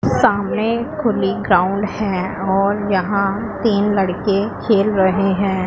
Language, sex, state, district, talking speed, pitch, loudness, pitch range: Hindi, female, Punjab, Pathankot, 115 wpm, 200 Hz, -17 LUFS, 190-210 Hz